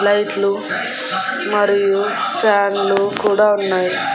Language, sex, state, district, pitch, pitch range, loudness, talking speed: Telugu, female, Andhra Pradesh, Annamaya, 200 Hz, 200-205 Hz, -17 LUFS, 70 wpm